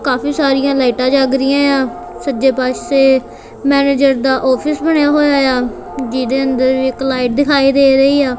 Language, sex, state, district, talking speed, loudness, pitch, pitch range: Punjabi, female, Punjab, Kapurthala, 165 wpm, -13 LUFS, 270 Hz, 260-280 Hz